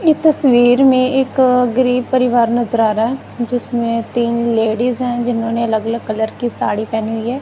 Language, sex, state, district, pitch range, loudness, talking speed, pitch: Hindi, female, Punjab, Kapurthala, 230-255 Hz, -15 LUFS, 185 wpm, 240 Hz